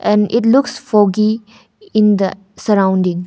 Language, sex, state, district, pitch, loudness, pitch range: English, female, Arunachal Pradesh, Longding, 210 Hz, -14 LUFS, 195-225 Hz